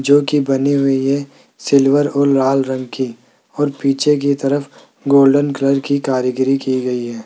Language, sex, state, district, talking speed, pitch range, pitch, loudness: Hindi, male, Rajasthan, Jaipur, 175 wpm, 130-140 Hz, 135 Hz, -16 LUFS